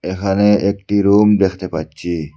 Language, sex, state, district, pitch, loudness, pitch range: Bengali, male, Assam, Hailakandi, 100 Hz, -15 LUFS, 90-100 Hz